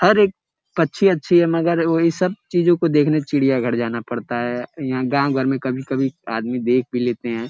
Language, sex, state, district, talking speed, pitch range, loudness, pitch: Hindi, male, Uttar Pradesh, Gorakhpur, 210 wpm, 125-170 Hz, -19 LUFS, 135 Hz